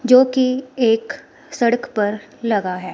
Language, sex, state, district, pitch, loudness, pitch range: Hindi, female, Himachal Pradesh, Shimla, 235 Hz, -18 LUFS, 210-255 Hz